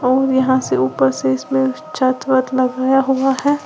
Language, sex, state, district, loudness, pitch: Hindi, female, Uttar Pradesh, Lalitpur, -16 LUFS, 255 Hz